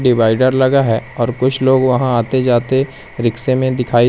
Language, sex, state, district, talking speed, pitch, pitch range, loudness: Hindi, male, Madhya Pradesh, Umaria, 175 wpm, 130 Hz, 120-130 Hz, -14 LUFS